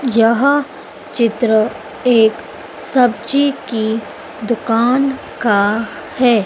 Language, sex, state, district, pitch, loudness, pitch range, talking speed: Hindi, female, Madhya Pradesh, Dhar, 235 Hz, -15 LUFS, 220-260 Hz, 75 wpm